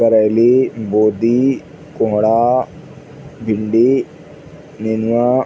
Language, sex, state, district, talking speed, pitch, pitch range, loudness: Hindi, male, Chhattisgarh, Raigarh, 65 wpm, 120 Hz, 110-150 Hz, -15 LUFS